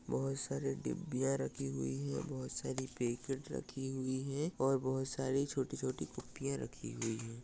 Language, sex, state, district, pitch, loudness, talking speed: Hindi, male, Maharashtra, Solapur, 130 Hz, -39 LUFS, 160 wpm